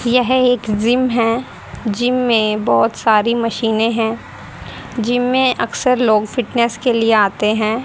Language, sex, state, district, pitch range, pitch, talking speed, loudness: Hindi, female, Haryana, Charkhi Dadri, 220-245 Hz, 230 Hz, 145 wpm, -16 LUFS